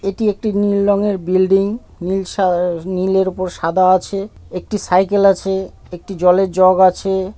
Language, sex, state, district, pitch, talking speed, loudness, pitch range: Bengali, male, West Bengal, North 24 Parganas, 190 Hz, 155 wpm, -16 LUFS, 185-200 Hz